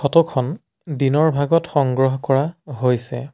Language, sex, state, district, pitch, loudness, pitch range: Assamese, male, Assam, Sonitpur, 140 Hz, -19 LUFS, 130-155 Hz